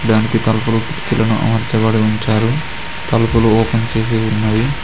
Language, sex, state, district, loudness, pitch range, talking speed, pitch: Telugu, male, Telangana, Mahabubabad, -15 LUFS, 110-115 Hz, 110 wpm, 115 Hz